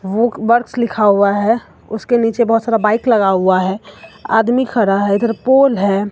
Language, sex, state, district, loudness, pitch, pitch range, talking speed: Hindi, female, Bihar, Katihar, -14 LUFS, 225 Hz, 200-235 Hz, 185 wpm